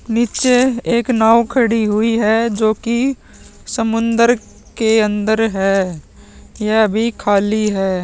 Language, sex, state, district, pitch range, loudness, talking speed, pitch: Hindi, male, Bihar, Vaishali, 210-235 Hz, -15 LUFS, 120 wpm, 225 Hz